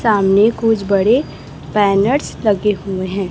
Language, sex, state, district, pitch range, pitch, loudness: Hindi, male, Chhattisgarh, Raipur, 190-210 Hz, 200 Hz, -15 LUFS